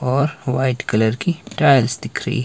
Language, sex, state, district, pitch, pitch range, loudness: Hindi, male, Himachal Pradesh, Shimla, 130 Hz, 125-150 Hz, -19 LUFS